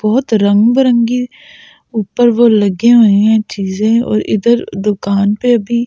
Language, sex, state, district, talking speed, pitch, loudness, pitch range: Hindi, female, Delhi, New Delhi, 135 wpm, 225 Hz, -12 LUFS, 210-240 Hz